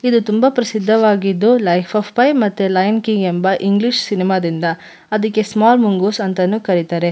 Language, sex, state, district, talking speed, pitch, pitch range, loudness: Kannada, female, Karnataka, Mysore, 150 wpm, 210 Hz, 185-220 Hz, -15 LUFS